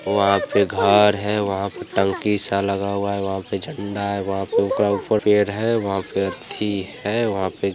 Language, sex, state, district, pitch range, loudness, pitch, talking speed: Hindi, male, Bihar, Vaishali, 95-105 Hz, -21 LUFS, 100 Hz, 125 wpm